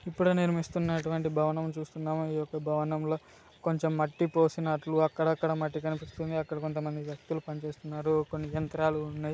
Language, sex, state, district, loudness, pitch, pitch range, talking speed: Telugu, male, Telangana, Nalgonda, -31 LUFS, 155 Hz, 155-160 Hz, 155 wpm